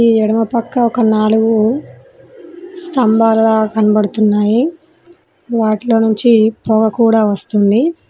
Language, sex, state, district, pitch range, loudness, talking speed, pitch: Telugu, female, Telangana, Mahabubabad, 220-240 Hz, -13 LUFS, 90 wpm, 225 Hz